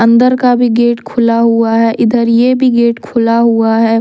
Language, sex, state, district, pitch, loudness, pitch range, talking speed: Hindi, female, Jharkhand, Deoghar, 235 Hz, -10 LUFS, 230-240 Hz, 210 wpm